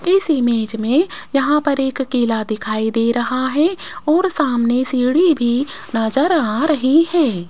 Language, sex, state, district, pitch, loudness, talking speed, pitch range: Hindi, female, Rajasthan, Jaipur, 265 Hz, -17 LUFS, 150 wpm, 235-305 Hz